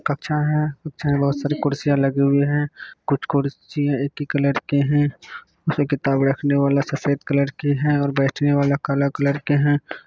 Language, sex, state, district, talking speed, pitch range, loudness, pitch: Hindi, male, Bihar, Kishanganj, 180 wpm, 140-145 Hz, -21 LUFS, 140 Hz